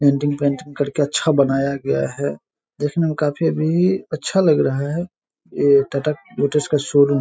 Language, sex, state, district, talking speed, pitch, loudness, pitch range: Hindi, male, Bihar, Saharsa, 160 wpm, 145 Hz, -19 LUFS, 140-155 Hz